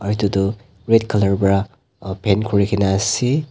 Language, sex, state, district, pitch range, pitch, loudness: Nagamese, male, Nagaland, Dimapur, 100-115 Hz, 100 Hz, -18 LUFS